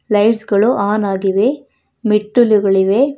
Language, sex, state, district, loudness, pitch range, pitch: Kannada, female, Karnataka, Bangalore, -14 LUFS, 200-240 Hz, 210 Hz